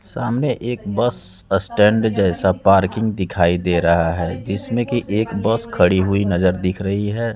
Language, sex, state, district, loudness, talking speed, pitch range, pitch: Hindi, male, Bihar, West Champaran, -18 LUFS, 165 wpm, 95-110 Hz, 100 Hz